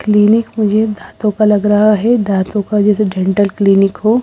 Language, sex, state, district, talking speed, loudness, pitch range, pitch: Hindi, female, Bihar, Katihar, 185 wpm, -13 LUFS, 205-215 Hz, 210 Hz